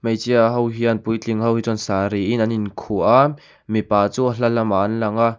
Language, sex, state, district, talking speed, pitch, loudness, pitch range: Mizo, male, Mizoram, Aizawl, 220 wpm, 115 Hz, -19 LUFS, 105-115 Hz